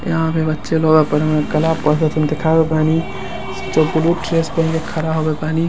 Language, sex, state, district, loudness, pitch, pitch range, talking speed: Maithili, male, Bihar, Samastipur, -17 LUFS, 160 Hz, 155-160 Hz, 200 wpm